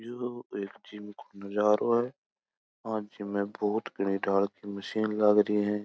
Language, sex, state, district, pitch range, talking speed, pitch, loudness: Marwari, male, Rajasthan, Churu, 100-110 Hz, 155 wpm, 105 Hz, -30 LUFS